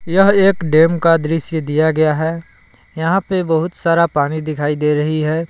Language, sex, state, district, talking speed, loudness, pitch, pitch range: Hindi, male, Jharkhand, Palamu, 185 wpm, -15 LUFS, 160 Hz, 155-170 Hz